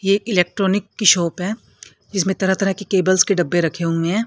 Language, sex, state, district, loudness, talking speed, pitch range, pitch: Hindi, female, Haryana, Rohtak, -18 LUFS, 210 wpm, 175-200 Hz, 190 Hz